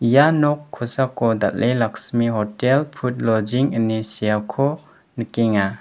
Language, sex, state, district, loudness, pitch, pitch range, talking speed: Garo, male, Meghalaya, West Garo Hills, -20 LUFS, 120 Hz, 110-140 Hz, 115 wpm